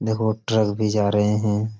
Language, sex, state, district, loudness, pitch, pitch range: Hindi, male, Uttar Pradesh, Budaun, -21 LUFS, 110 Hz, 105-110 Hz